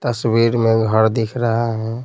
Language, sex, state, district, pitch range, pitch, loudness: Hindi, male, Bihar, Patna, 110-120 Hz, 115 Hz, -17 LUFS